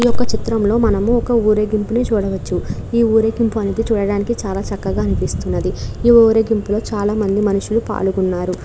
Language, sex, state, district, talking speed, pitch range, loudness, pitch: Telugu, female, Andhra Pradesh, Krishna, 155 wpm, 205-230 Hz, -17 LUFS, 215 Hz